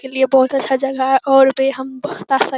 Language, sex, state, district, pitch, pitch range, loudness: Hindi, female, Bihar, Jamui, 265 Hz, 265-270 Hz, -15 LUFS